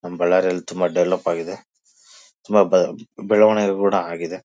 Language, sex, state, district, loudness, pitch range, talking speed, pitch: Kannada, male, Karnataka, Bellary, -19 LUFS, 90-100 Hz, 120 wpm, 95 Hz